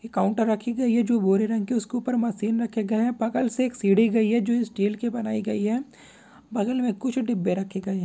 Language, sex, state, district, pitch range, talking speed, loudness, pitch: Hindi, male, Bihar, Purnia, 210-240 Hz, 225 wpm, -24 LUFS, 225 Hz